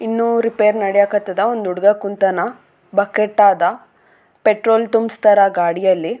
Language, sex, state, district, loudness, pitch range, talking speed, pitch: Kannada, female, Karnataka, Raichur, -16 LUFS, 195-225 Hz, 105 wpm, 205 Hz